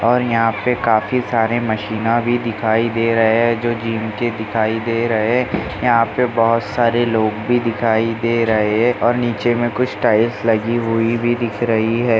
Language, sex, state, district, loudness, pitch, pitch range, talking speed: Hindi, male, Maharashtra, Chandrapur, -17 LUFS, 115 Hz, 110-120 Hz, 190 wpm